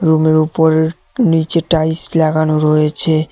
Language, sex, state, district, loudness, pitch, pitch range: Bengali, male, Tripura, West Tripura, -14 LUFS, 160 Hz, 155-160 Hz